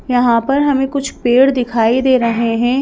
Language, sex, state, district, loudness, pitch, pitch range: Hindi, female, Madhya Pradesh, Bhopal, -14 LUFS, 250 Hz, 235-270 Hz